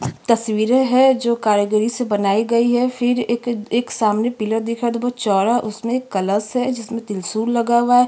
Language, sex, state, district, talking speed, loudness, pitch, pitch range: Hindi, female, Chhattisgarh, Kabirdham, 200 wpm, -18 LUFS, 235 Hz, 215-245 Hz